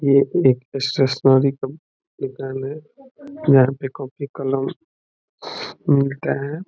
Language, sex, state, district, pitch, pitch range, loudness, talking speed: Hindi, male, Bihar, Saran, 140 Hz, 135-185 Hz, -20 LUFS, 110 wpm